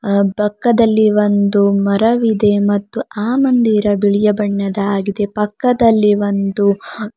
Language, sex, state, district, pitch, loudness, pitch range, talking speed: Kannada, female, Karnataka, Bidar, 210 Hz, -14 LUFS, 200-220 Hz, 90 wpm